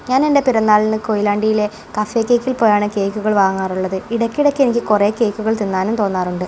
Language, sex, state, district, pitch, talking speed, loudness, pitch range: Malayalam, female, Kerala, Kozhikode, 215 Hz, 130 wpm, -16 LUFS, 205-230 Hz